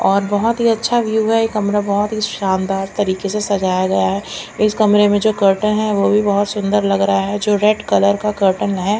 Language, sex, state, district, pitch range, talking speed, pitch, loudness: Hindi, female, Chandigarh, Chandigarh, 195-210 Hz, 225 wpm, 205 Hz, -16 LUFS